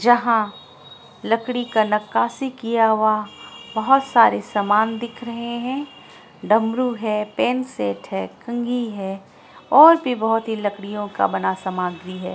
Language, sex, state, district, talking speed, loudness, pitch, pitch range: Hindi, female, Bihar, Araria, 135 wpm, -20 LUFS, 225 Hz, 205-240 Hz